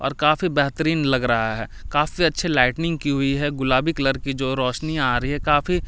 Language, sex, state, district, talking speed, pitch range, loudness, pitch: Hindi, male, Delhi, New Delhi, 205 wpm, 130-155 Hz, -21 LUFS, 140 Hz